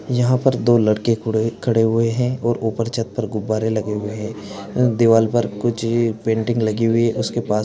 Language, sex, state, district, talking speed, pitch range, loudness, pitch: Hindi, male, Maharashtra, Dhule, 205 wpm, 110-120 Hz, -19 LUFS, 115 Hz